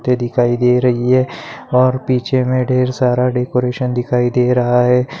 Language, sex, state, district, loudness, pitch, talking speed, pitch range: Hindi, male, West Bengal, Kolkata, -15 LUFS, 125 Hz, 160 wpm, 125-130 Hz